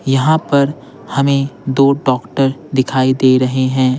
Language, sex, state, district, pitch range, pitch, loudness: Hindi, male, Bihar, Patna, 130-140 Hz, 135 Hz, -14 LUFS